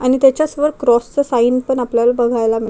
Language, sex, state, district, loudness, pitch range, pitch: Marathi, female, Maharashtra, Chandrapur, -15 LUFS, 240-270 Hz, 250 Hz